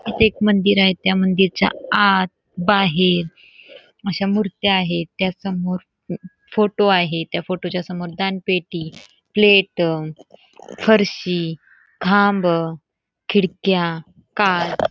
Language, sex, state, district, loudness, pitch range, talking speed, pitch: Marathi, female, Karnataka, Belgaum, -18 LUFS, 175-200 Hz, 95 wpm, 190 Hz